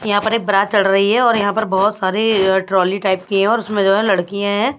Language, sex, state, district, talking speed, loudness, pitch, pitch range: Hindi, female, Bihar, West Champaran, 290 wpm, -16 LUFS, 200 Hz, 195-215 Hz